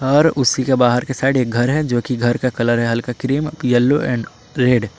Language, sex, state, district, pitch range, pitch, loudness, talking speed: Hindi, male, Jharkhand, Palamu, 120-135 Hz, 125 Hz, -17 LUFS, 240 wpm